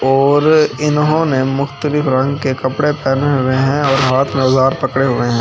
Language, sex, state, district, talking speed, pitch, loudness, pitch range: Hindi, male, Delhi, New Delhi, 175 wpm, 135 Hz, -14 LUFS, 130-150 Hz